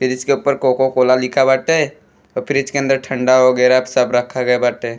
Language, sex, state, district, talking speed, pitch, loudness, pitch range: Bhojpuri, male, Uttar Pradesh, Deoria, 205 wpm, 130 Hz, -15 LUFS, 125-135 Hz